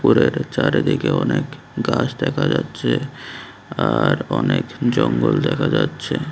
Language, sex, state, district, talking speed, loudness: Bengali, male, Tripura, West Tripura, 105 wpm, -19 LUFS